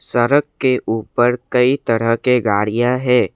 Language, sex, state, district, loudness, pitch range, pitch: Hindi, male, Assam, Kamrup Metropolitan, -16 LUFS, 115-125 Hz, 125 Hz